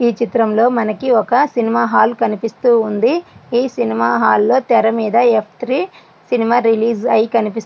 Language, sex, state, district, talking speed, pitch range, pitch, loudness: Telugu, female, Andhra Pradesh, Srikakulam, 140 wpm, 220-240 Hz, 230 Hz, -15 LUFS